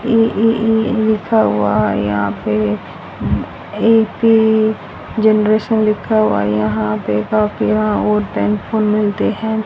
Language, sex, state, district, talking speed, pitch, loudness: Hindi, female, Haryana, Rohtak, 105 wpm, 215 Hz, -15 LUFS